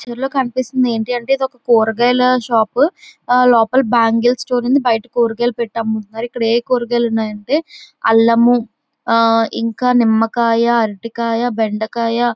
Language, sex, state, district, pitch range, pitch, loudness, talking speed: Telugu, female, Andhra Pradesh, Visakhapatnam, 230-250 Hz, 235 Hz, -15 LUFS, 120 wpm